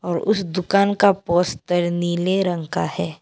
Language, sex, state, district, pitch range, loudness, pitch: Hindi, female, Arunachal Pradesh, Papum Pare, 175-195 Hz, -20 LUFS, 180 Hz